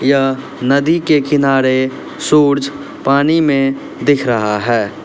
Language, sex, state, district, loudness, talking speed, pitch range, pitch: Hindi, male, Uttar Pradesh, Lalitpur, -14 LUFS, 120 wpm, 130-145 Hz, 135 Hz